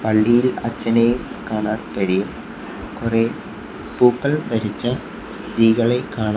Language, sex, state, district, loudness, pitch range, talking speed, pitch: Malayalam, male, Kerala, Kollam, -19 LUFS, 110-120 Hz, 85 wpm, 115 Hz